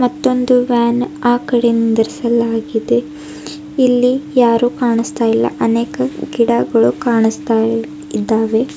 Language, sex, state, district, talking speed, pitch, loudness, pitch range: Kannada, female, Karnataka, Bidar, 90 wpm, 235 Hz, -15 LUFS, 225-245 Hz